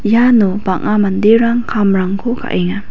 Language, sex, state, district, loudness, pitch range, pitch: Garo, female, Meghalaya, West Garo Hills, -13 LUFS, 195-235 Hz, 210 Hz